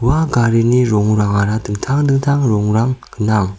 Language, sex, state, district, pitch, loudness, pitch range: Garo, male, Meghalaya, South Garo Hills, 115 Hz, -15 LUFS, 105-130 Hz